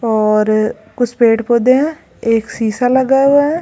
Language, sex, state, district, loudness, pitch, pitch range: Hindi, female, Rajasthan, Jaipur, -14 LUFS, 235 Hz, 220-265 Hz